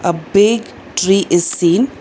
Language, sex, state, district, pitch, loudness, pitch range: English, female, Telangana, Hyderabad, 190 Hz, -14 LUFS, 175-205 Hz